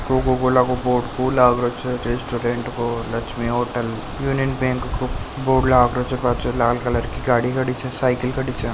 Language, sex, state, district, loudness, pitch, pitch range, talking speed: Marwari, male, Rajasthan, Nagaur, -20 LUFS, 125 Hz, 120-130 Hz, 170 wpm